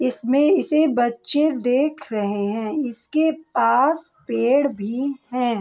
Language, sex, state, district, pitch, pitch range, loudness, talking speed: Hindi, female, Bihar, Begusarai, 260 Hz, 235-300 Hz, -21 LUFS, 115 wpm